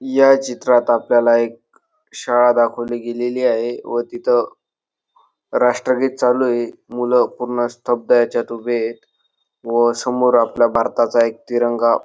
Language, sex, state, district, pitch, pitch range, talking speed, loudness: Marathi, male, Maharashtra, Dhule, 120 Hz, 120-125 Hz, 130 wpm, -17 LUFS